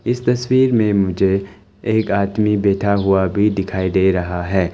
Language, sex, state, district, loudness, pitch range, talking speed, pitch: Hindi, male, Arunachal Pradesh, Longding, -17 LUFS, 95-105 Hz, 165 wpm, 100 Hz